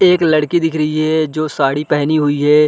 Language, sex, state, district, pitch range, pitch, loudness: Hindi, male, Chhattisgarh, Sarguja, 150-160 Hz, 155 Hz, -15 LUFS